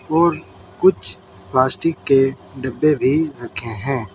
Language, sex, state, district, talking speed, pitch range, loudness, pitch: Hindi, male, Uttar Pradesh, Saharanpur, 115 wpm, 120-155 Hz, -19 LUFS, 135 Hz